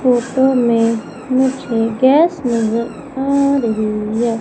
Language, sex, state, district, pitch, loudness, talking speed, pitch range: Hindi, female, Madhya Pradesh, Umaria, 245 Hz, -16 LUFS, 110 wpm, 230-265 Hz